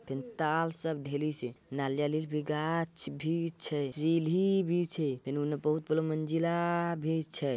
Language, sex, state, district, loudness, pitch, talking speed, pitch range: Angika, male, Bihar, Bhagalpur, -32 LUFS, 155 Hz, 160 wpm, 145-165 Hz